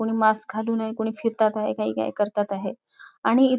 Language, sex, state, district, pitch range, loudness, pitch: Marathi, female, Maharashtra, Nagpur, 205-225 Hz, -25 LUFS, 220 Hz